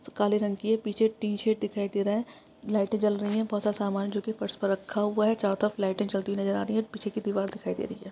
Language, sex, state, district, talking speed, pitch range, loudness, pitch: Hindi, female, Uttar Pradesh, Jalaun, 295 wpm, 200-220 Hz, -28 LUFS, 210 Hz